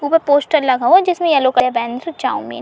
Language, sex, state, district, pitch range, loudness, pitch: Hindi, female, Uttar Pradesh, Muzaffarnagar, 250-325 Hz, -15 LUFS, 285 Hz